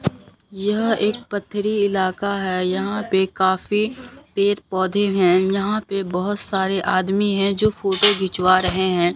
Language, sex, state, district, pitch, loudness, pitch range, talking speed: Hindi, male, Bihar, Katihar, 195 Hz, -20 LUFS, 190-205 Hz, 145 wpm